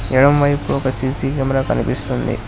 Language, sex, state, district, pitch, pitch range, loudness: Telugu, male, Telangana, Hyderabad, 135 Hz, 130-140 Hz, -17 LUFS